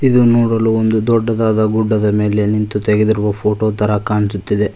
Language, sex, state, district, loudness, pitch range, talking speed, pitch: Kannada, male, Karnataka, Koppal, -15 LUFS, 105-110 Hz, 140 wpm, 110 Hz